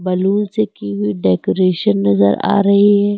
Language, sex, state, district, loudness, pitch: Hindi, female, Uttar Pradesh, Lucknow, -15 LUFS, 185 Hz